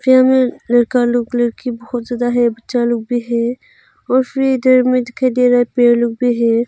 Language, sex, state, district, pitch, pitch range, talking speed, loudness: Hindi, female, Arunachal Pradesh, Longding, 245 Hz, 235-255 Hz, 215 wpm, -15 LUFS